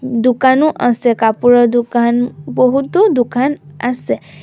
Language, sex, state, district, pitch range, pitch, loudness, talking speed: Assamese, female, Assam, Sonitpur, 240-260 Hz, 245 Hz, -14 LUFS, 95 wpm